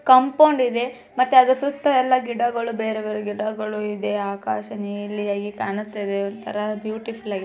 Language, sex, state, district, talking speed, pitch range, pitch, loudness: Kannada, male, Karnataka, Bijapur, 145 wpm, 205-250 Hz, 215 Hz, -22 LUFS